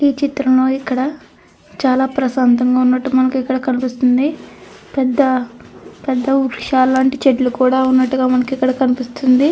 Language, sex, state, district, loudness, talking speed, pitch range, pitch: Telugu, female, Andhra Pradesh, Krishna, -15 LUFS, 125 wpm, 255-265 Hz, 260 Hz